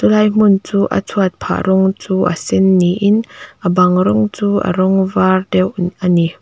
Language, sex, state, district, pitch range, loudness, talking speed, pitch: Mizo, female, Mizoram, Aizawl, 180-200 Hz, -14 LUFS, 205 wpm, 190 Hz